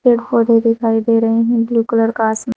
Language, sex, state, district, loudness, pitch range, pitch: Hindi, female, Uttar Pradesh, Saharanpur, -15 LUFS, 225-235 Hz, 230 Hz